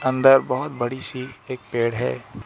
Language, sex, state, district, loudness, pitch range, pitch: Hindi, male, Arunachal Pradesh, Lower Dibang Valley, -21 LUFS, 120-135 Hz, 130 Hz